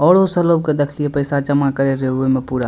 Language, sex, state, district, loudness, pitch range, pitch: Maithili, male, Bihar, Madhepura, -17 LUFS, 130-155 Hz, 140 Hz